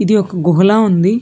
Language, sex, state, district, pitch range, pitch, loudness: Telugu, female, Telangana, Hyderabad, 180-215 Hz, 195 Hz, -12 LUFS